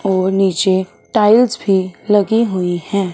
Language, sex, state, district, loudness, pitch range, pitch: Hindi, female, Punjab, Fazilka, -15 LUFS, 185-210 Hz, 195 Hz